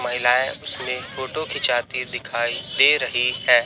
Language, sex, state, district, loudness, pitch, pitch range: Hindi, male, Chhattisgarh, Raipur, -20 LUFS, 125 Hz, 120-130 Hz